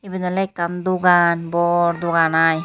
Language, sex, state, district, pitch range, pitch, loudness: Chakma, female, Tripura, Unakoti, 170-180 Hz, 170 Hz, -18 LUFS